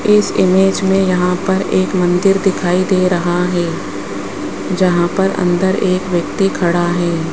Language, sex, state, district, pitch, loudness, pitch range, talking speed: Hindi, male, Rajasthan, Jaipur, 180 Hz, -15 LUFS, 175-190 Hz, 145 wpm